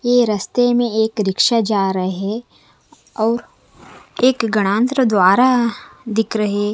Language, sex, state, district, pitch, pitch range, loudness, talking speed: Hindi, female, Punjab, Kapurthala, 225 Hz, 205-245 Hz, -17 LUFS, 125 wpm